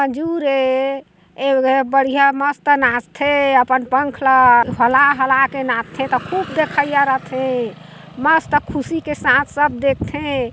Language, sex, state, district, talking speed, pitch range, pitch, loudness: Chhattisgarhi, female, Chhattisgarh, Korba, 120 wpm, 260-285 Hz, 270 Hz, -16 LUFS